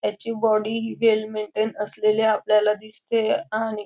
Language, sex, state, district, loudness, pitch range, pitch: Marathi, female, Maharashtra, Dhule, -23 LUFS, 215-225 Hz, 215 Hz